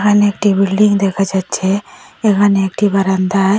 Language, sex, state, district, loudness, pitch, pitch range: Bengali, female, Assam, Hailakandi, -14 LUFS, 195 Hz, 195-205 Hz